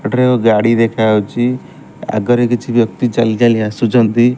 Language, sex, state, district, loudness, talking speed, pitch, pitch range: Odia, male, Odisha, Malkangiri, -13 LUFS, 150 wpm, 115 Hz, 110-120 Hz